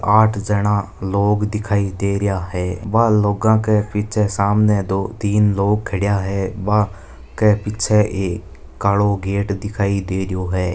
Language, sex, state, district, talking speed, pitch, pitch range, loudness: Marwari, male, Rajasthan, Nagaur, 145 wpm, 100 Hz, 95-105 Hz, -18 LUFS